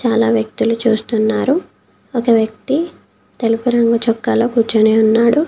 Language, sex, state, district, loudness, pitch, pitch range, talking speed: Telugu, female, Telangana, Komaram Bheem, -15 LUFS, 230 Hz, 220-240 Hz, 120 wpm